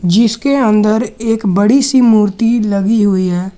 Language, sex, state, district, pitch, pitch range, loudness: Hindi, male, Jharkhand, Garhwa, 220 Hz, 200-230 Hz, -12 LUFS